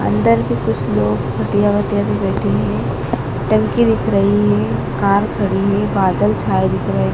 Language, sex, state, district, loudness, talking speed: Hindi, female, Madhya Pradesh, Dhar, -16 LUFS, 170 wpm